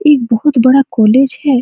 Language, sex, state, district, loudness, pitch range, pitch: Hindi, female, Bihar, Supaul, -10 LUFS, 240-280 Hz, 265 Hz